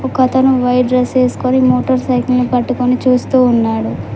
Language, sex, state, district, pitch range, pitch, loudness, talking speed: Telugu, female, Telangana, Mahabubabad, 250-255 Hz, 250 Hz, -13 LUFS, 145 wpm